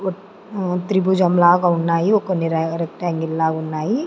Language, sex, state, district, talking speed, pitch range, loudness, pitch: Telugu, female, Andhra Pradesh, Sri Satya Sai, 105 wpm, 165-190 Hz, -19 LUFS, 175 Hz